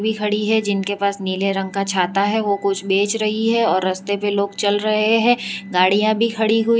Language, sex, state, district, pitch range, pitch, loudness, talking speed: Hindi, female, Gujarat, Valsad, 195-220 Hz, 205 Hz, -19 LUFS, 220 wpm